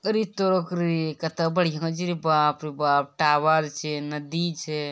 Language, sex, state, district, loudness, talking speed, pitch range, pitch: Maithili, male, Bihar, Bhagalpur, -24 LUFS, 185 wpm, 150-170 Hz, 160 Hz